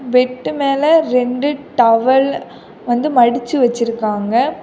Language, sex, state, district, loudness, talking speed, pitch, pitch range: Tamil, female, Tamil Nadu, Kanyakumari, -15 LUFS, 90 wpm, 250 Hz, 240-280 Hz